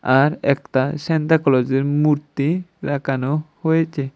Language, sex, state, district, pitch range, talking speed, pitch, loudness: Bengali, male, Tripura, West Tripura, 135-160 Hz, 100 wpm, 145 Hz, -19 LUFS